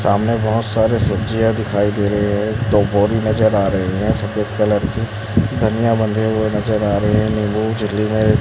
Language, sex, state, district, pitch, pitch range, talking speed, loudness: Hindi, male, Chhattisgarh, Raipur, 110 Hz, 105-110 Hz, 200 wpm, -17 LUFS